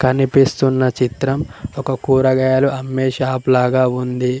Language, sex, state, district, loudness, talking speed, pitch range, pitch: Telugu, male, Telangana, Mahabubabad, -17 LUFS, 110 wpm, 125-135 Hz, 130 Hz